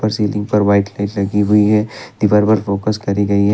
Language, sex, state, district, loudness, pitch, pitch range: Hindi, male, Assam, Kamrup Metropolitan, -15 LUFS, 105 Hz, 100-105 Hz